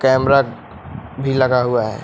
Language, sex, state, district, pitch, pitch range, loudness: Hindi, male, Uttar Pradesh, Lucknow, 130 Hz, 120-135 Hz, -17 LUFS